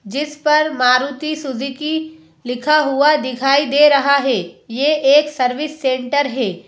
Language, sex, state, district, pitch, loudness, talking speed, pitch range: Hindi, female, Madhya Pradesh, Bhopal, 280 Hz, -16 LUFS, 135 wpm, 260-300 Hz